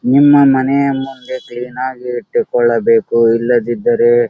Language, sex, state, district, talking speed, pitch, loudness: Kannada, male, Karnataka, Dharwad, 100 wpm, 135 Hz, -13 LUFS